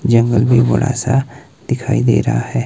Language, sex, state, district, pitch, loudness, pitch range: Hindi, male, Himachal Pradesh, Shimla, 120 Hz, -15 LUFS, 115-135 Hz